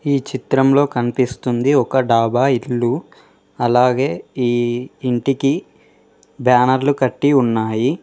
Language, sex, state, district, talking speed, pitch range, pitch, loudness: Telugu, male, Telangana, Mahabubabad, 90 wpm, 120-135 Hz, 125 Hz, -17 LUFS